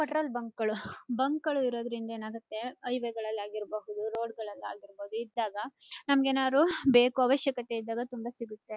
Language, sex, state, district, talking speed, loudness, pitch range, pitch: Kannada, female, Karnataka, Chamarajanagar, 145 wpm, -31 LUFS, 220-265 Hz, 235 Hz